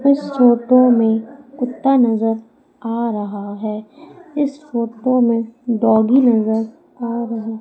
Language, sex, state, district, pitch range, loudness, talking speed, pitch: Hindi, female, Madhya Pradesh, Umaria, 225-265 Hz, -17 LUFS, 120 wpm, 235 Hz